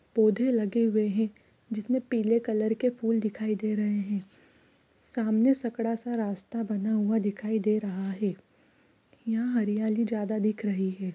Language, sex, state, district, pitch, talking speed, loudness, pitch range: Hindi, female, Bihar, East Champaran, 220 Hz, 165 wpm, -28 LUFS, 210-230 Hz